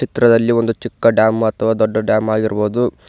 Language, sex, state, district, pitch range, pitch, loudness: Kannada, male, Karnataka, Koppal, 110-115 Hz, 110 Hz, -15 LUFS